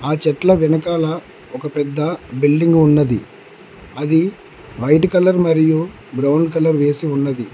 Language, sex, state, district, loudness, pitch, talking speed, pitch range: Telugu, male, Telangana, Mahabubabad, -16 LUFS, 155 Hz, 120 wpm, 145-165 Hz